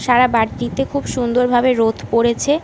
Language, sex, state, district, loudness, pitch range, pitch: Bengali, female, West Bengal, Kolkata, -17 LUFS, 235-255 Hz, 245 Hz